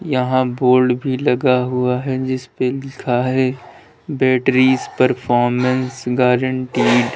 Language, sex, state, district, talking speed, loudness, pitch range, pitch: Hindi, male, Uttar Pradesh, Lalitpur, 115 wpm, -17 LUFS, 125-130 Hz, 130 Hz